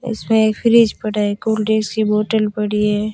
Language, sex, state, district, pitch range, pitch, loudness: Hindi, female, Rajasthan, Jaisalmer, 210-220 Hz, 215 Hz, -17 LUFS